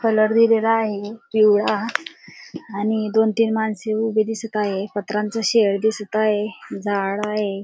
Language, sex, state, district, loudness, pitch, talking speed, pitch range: Marathi, female, Maharashtra, Dhule, -20 LUFS, 215 Hz, 135 wpm, 205-225 Hz